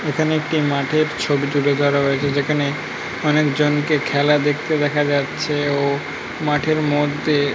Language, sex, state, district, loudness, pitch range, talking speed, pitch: Bengali, male, West Bengal, North 24 Parganas, -19 LUFS, 145-150 Hz, 135 wpm, 145 Hz